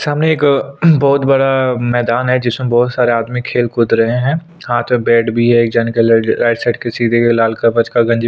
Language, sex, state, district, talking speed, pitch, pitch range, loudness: Hindi, male, Chhattisgarh, Sukma, 210 wpm, 120 Hz, 115-130 Hz, -13 LUFS